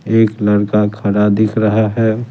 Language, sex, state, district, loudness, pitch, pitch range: Hindi, male, Bihar, Patna, -14 LUFS, 110 Hz, 105-110 Hz